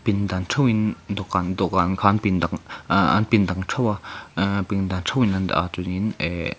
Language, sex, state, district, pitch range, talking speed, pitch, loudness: Mizo, male, Mizoram, Aizawl, 90-105 Hz, 190 wpm, 95 Hz, -22 LUFS